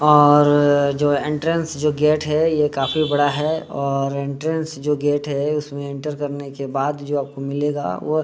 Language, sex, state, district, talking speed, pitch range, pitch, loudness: Hindi, male, Bihar, Muzaffarpur, 180 wpm, 140-150 Hz, 145 Hz, -20 LUFS